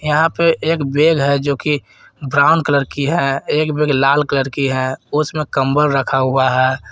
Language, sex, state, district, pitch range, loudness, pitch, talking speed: Hindi, male, Jharkhand, Garhwa, 135-150 Hz, -16 LUFS, 140 Hz, 190 wpm